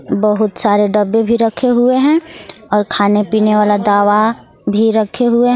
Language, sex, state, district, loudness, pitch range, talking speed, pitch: Hindi, female, Jharkhand, Garhwa, -13 LUFS, 205-235 Hz, 160 wpm, 215 Hz